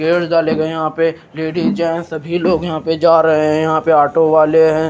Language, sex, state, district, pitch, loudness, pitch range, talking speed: Hindi, male, Haryana, Jhajjar, 160 Hz, -14 LUFS, 155-165 Hz, 235 wpm